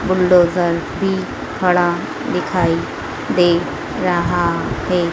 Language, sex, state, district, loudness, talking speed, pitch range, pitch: Hindi, female, Madhya Pradesh, Dhar, -17 LUFS, 80 wpm, 175-180 Hz, 175 Hz